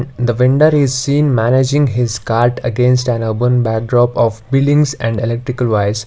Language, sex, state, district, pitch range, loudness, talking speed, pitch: English, male, Karnataka, Bangalore, 115-135 Hz, -14 LUFS, 160 wpm, 125 Hz